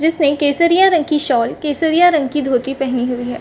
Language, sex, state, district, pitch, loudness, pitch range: Hindi, female, Chhattisgarh, Rajnandgaon, 290 Hz, -15 LUFS, 255-320 Hz